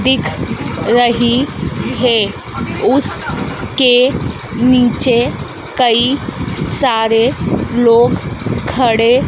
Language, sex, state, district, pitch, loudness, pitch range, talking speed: Hindi, female, Madhya Pradesh, Dhar, 240 Hz, -14 LUFS, 230-255 Hz, 65 wpm